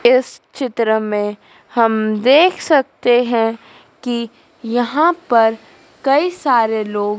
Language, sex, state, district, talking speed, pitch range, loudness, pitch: Hindi, female, Madhya Pradesh, Dhar, 110 wpm, 220-270 Hz, -16 LUFS, 240 Hz